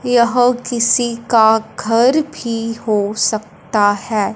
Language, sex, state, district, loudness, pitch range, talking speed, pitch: Hindi, female, Punjab, Fazilka, -15 LUFS, 215-245 Hz, 110 wpm, 230 Hz